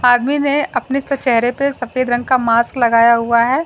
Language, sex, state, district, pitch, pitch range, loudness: Hindi, female, Bihar, Katihar, 245 Hz, 235-275 Hz, -15 LUFS